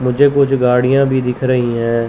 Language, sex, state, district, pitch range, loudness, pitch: Hindi, male, Chandigarh, Chandigarh, 125-135 Hz, -14 LUFS, 130 Hz